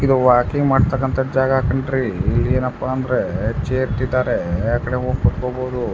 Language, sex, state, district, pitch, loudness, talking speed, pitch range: Kannada, male, Karnataka, Dharwad, 130 Hz, -19 LUFS, 130 wpm, 120-130 Hz